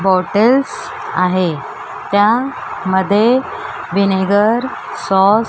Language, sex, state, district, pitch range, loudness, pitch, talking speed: Marathi, male, Maharashtra, Mumbai Suburban, 190-225 Hz, -15 LUFS, 200 Hz, 75 wpm